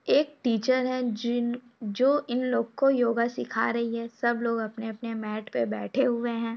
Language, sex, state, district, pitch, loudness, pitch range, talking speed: Hindi, female, Bihar, Samastipur, 235 Hz, -27 LUFS, 230-250 Hz, 190 wpm